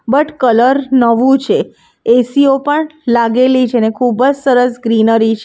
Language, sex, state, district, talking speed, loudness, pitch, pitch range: Gujarati, female, Gujarat, Valsad, 155 wpm, -12 LUFS, 250 Hz, 235-270 Hz